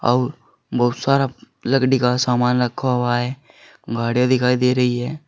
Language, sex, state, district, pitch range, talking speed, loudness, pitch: Hindi, male, Uttar Pradesh, Saharanpur, 120-130 Hz, 160 wpm, -19 LUFS, 125 Hz